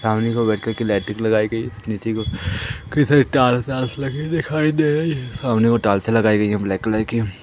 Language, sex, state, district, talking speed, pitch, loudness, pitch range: Hindi, male, Madhya Pradesh, Umaria, 235 wpm, 115 Hz, -20 LUFS, 110-130 Hz